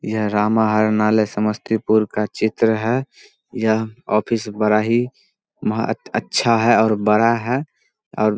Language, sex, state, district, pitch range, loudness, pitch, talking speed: Hindi, male, Bihar, Samastipur, 105-115 Hz, -19 LUFS, 110 Hz, 135 wpm